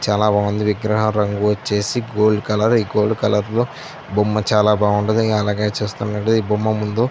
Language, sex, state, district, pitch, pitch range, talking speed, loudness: Telugu, male, Andhra Pradesh, Anantapur, 105 Hz, 105-110 Hz, 170 wpm, -18 LUFS